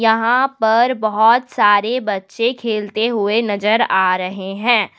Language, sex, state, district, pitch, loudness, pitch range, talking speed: Hindi, female, Jharkhand, Deoghar, 220 Hz, -16 LUFS, 205-235 Hz, 130 wpm